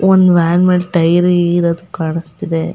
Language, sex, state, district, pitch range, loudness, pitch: Kannada, female, Karnataka, Chamarajanagar, 165-180 Hz, -13 LUFS, 175 Hz